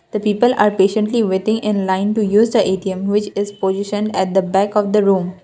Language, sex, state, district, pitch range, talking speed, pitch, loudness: English, female, Assam, Kamrup Metropolitan, 190-210 Hz, 220 wpm, 205 Hz, -17 LUFS